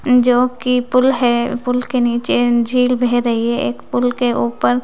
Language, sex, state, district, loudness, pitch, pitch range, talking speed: Hindi, female, Bihar, West Champaran, -16 LUFS, 245 Hz, 235-250 Hz, 200 wpm